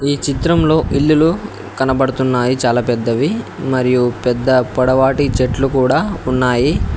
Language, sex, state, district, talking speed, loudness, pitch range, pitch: Telugu, male, Telangana, Mahabubabad, 105 wpm, -15 LUFS, 125-140 Hz, 130 Hz